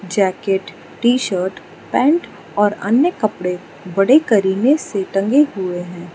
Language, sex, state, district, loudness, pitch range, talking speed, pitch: Hindi, female, Arunachal Pradesh, Lower Dibang Valley, -17 LUFS, 185-240 Hz, 115 wpm, 195 Hz